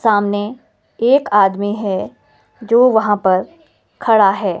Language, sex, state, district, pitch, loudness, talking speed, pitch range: Hindi, female, Himachal Pradesh, Shimla, 205 Hz, -15 LUFS, 115 wpm, 195-230 Hz